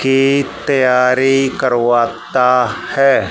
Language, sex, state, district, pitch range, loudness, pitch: Hindi, male, Haryana, Charkhi Dadri, 125-135 Hz, -14 LUFS, 130 Hz